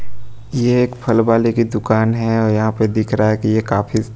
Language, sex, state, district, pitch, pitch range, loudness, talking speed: Hindi, male, Bihar, West Champaran, 115 Hz, 110-115 Hz, -16 LUFS, 230 wpm